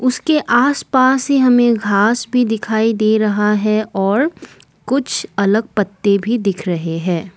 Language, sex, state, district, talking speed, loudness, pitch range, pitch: Hindi, female, Assam, Kamrup Metropolitan, 155 wpm, -15 LUFS, 200-245 Hz, 220 Hz